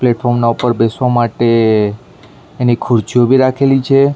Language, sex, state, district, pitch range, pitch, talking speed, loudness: Gujarati, male, Maharashtra, Mumbai Suburban, 115-130 Hz, 120 Hz, 145 wpm, -13 LUFS